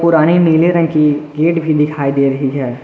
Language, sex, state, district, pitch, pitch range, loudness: Hindi, male, Jharkhand, Garhwa, 150 Hz, 140-165 Hz, -13 LUFS